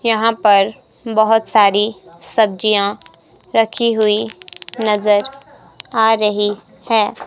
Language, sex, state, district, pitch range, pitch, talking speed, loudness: Hindi, female, Himachal Pradesh, Shimla, 205-225 Hz, 215 Hz, 90 wpm, -15 LUFS